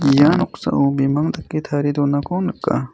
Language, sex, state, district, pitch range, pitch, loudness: Garo, male, Meghalaya, South Garo Hills, 140-155 Hz, 145 Hz, -19 LUFS